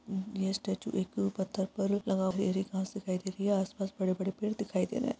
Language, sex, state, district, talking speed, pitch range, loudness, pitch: Hindi, female, Chhattisgarh, Balrampur, 265 wpm, 190-200 Hz, -33 LUFS, 195 Hz